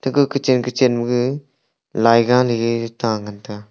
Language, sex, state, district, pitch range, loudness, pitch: Wancho, male, Arunachal Pradesh, Longding, 115-130 Hz, -18 LUFS, 120 Hz